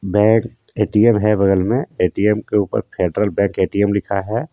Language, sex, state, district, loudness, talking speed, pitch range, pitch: Hindi, male, Jharkhand, Deoghar, -17 LUFS, 170 wpm, 100-110 Hz, 105 Hz